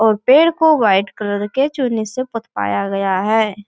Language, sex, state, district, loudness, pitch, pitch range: Hindi, female, Bihar, Bhagalpur, -16 LUFS, 220 Hz, 200-255 Hz